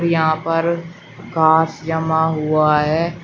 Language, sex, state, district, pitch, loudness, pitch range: Hindi, female, Uttar Pradesh, Shamli, 160 Hz, -17 LUFS, 160-165 Hz